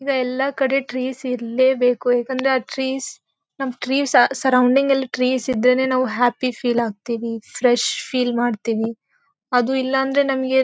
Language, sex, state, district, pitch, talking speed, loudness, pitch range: Kannada, female, Karnataka, Bellary, 255 Hz, 150 wpm, -20 LUFS, 245-265 Hz